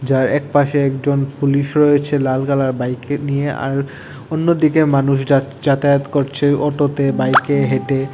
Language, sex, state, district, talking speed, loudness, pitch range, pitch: Bengali, male, Tripura, West Tripura, 135 wpm, -16 LUFS, 135-145 Hz, 140 Hz